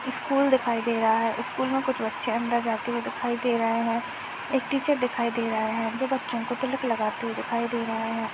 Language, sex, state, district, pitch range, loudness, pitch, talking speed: Hindi, female, Uttar Pradesh, Hamirpur, 230-260 Hz, -27 LUFS, 235 Hz, 230 wpm